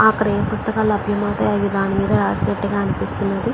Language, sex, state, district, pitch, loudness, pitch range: Telugu, female, Andhra Pradesh, Chittoor, 205 Hz, -19 LUFS, 200-215 Hz